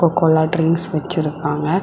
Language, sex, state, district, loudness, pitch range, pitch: Tamil, female, Tamil Nadu, Kanyakumari, -18 LUFS, 155-170 Hz, 160 Hz